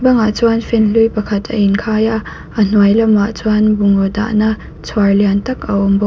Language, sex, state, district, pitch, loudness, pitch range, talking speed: Mizo, female, Mizoram, Aizawl, 215 Hz, -14 LUFS, 205-225 Hz, 200 wpm